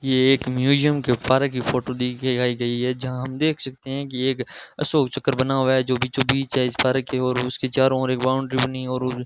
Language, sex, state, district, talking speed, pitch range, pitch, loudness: Hindi, male, Rajasthan, Bikaner, 245 wpm, 125-135 Hz, 130 Hz, -22 LUFS